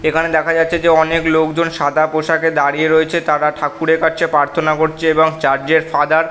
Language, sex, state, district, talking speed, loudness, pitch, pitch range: Bengali, male, West Bengal, North 24 Parganas, 190 wpm, -15 LUFS, 160 Hz, 155-160 Hz